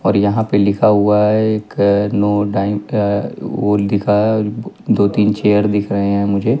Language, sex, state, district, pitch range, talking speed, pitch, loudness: Hindi, male, Maharashtra, Mumbai Suburban, 100-105 Hz, 170 wpm, 105 Hz, -15 LUFS